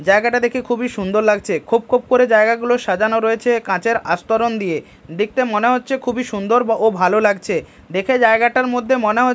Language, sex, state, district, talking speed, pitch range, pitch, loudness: Bengali, male, Odisha, Malkangiri, 175 wpm, 210-245 Hz, 225 Hz, -17 LUFS